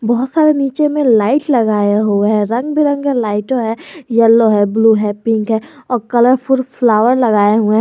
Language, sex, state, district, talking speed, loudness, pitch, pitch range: Hindi, male, Jharkhand, Garhwa, 185 wpm, -13 LUFS, 235 Hz, 215-265 Hz